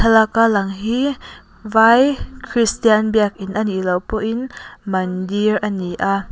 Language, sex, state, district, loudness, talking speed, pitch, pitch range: Mizo, female, Mizoram, Aizawl, -17 LUFS, 125 wpm, 215 Hz, 195-225 Hz